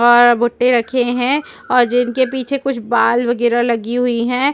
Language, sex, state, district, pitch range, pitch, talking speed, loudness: Hindi, female, Chhattisgarh, Rajnandgaon, 240-255 Hz, 245 Hz, 170 wpm, -15 LUFS